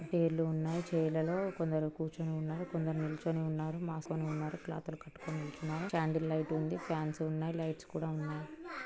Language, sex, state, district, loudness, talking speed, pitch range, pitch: Telugu, female, Telangana, Karimnagar, -37 LUFS, 175 wpm, 155-165 Hz, 160 Hz